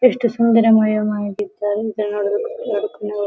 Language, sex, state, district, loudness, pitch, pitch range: Kannada, female, Karnataka, Dharwad, -18 LUFS, 215 Hz, 205-230 Hz